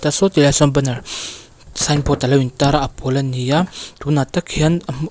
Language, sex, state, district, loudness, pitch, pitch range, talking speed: Mizo, female, Mizoram, Aizawl, -17 LUFS, 145 Hz, 140-155 Hz, 210 wpm